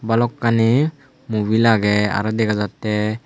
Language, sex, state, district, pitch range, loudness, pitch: Chakma, male, Tripura, Unakoti, 105-115 Hz, -18 LUFS, 110 Hz